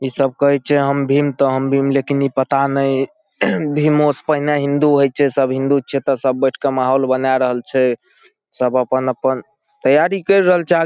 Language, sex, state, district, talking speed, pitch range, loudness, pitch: Maithili, male, Bihar, Saharsa, 205 wpm, 130-145 Hz, -16 LUFS, 140 Hz